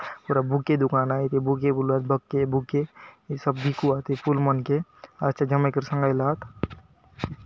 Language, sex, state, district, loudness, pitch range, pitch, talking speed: Halbi, male, Chhattisgarh, Bastar, -25 LUFS, 135-145 Hz, 140 Hz, 160 wpm